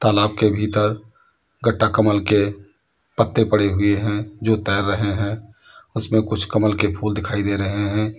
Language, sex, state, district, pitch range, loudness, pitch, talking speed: Hindi, male, Uttar Pradesh, Lalitpur, 100-110 Hz, -20 LUFS, 105 Hz, 160 wpm